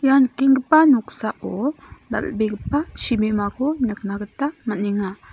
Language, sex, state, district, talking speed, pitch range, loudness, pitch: Garo, female, Meghalaya, South Garo Hills, 80 wpm, 210-280 Hz, -21 LUFS, 240 Hz